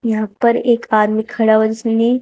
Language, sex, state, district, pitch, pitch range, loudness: Hindi, female, Haryana, Rohtak, 225 Hz, 220-235 Hz, -15 LUFS